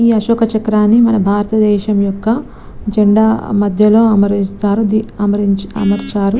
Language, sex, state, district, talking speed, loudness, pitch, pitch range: Telugu, female, Telangana, Nalgonda, 95 wpm, -13 LUFS, 210 Hz, 205-220 Hz